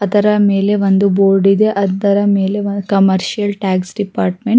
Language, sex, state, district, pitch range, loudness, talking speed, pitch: Kannada, female, Karnataka, Mysore, 195-205 Hz, -14 LUFS, 155 wpm, 200 Hz